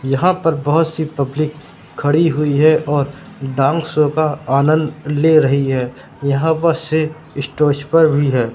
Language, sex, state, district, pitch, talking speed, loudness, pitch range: Hindi, male, Madhya Pradesh, Katni, 150 Hz, 160 wpm, -16 LUFS, 140-160 Hz